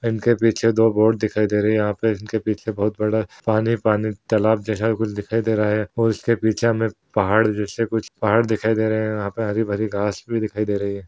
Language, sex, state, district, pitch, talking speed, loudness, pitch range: Hindi, male, Bihar, Bhagalpur, 110 Hz, 240 wpm, -21 LUFS, 105-110 Hz